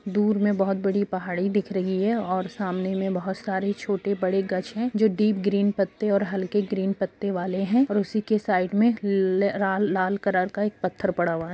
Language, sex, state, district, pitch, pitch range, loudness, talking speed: Hindi, female, Jharkhand, Sahebganj, 195 Hz, 190-205 Hz, -25 LUFS, 210 wpm